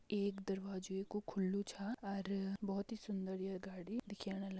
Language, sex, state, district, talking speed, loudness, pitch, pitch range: Garhwali, female, Uttarakhand, Tehri Garhwal, 180 wpm, -43 LUFS, 195 Hz, 190-205 Hz